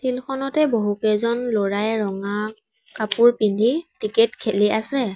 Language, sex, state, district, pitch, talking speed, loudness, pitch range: Assamese, female, Assam, Sonitpur, 220 Hz, 115 wpm, -21 LUFS, 210-245 Hz